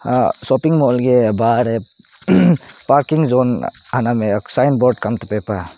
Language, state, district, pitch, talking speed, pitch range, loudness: Nyishi, Arunachal Pradesh, Papum Pare, 120 Hz, 135 wpm, 110-130 Hz, -16 LUFS